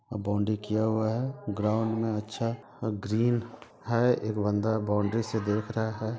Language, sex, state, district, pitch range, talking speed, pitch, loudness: Hindi, male, Bihar, Sitamarhi, 105-115 Hz, 155 wpm, 110 Hz, -29 LUFS